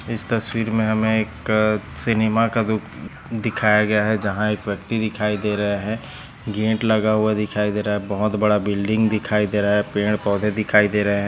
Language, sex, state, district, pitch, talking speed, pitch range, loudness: Hindi, male, Maharashtra, Chandrapur, 105 Hz, 205 wpm, 105-110 Hz, -20 LUFS